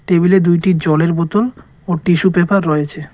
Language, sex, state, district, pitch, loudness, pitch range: Bengali, male, West Bengal, Cooch Behar, 175 Hz, -14 LUFS, 160-185 Hz